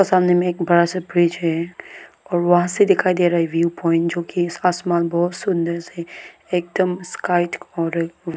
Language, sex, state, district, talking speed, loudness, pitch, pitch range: Hindi, female, Arunachal Pradesh, Lower Dibang Valley, 185 wpm, -19 LUFS, 175 Hz, 170-180 Hz